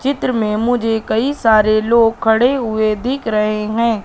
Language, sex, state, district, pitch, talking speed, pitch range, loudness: Hindi, female, Madhya Pradesh, Katni, 225 Hz, 165 wpm, 215-245 Hz, -15 LUFS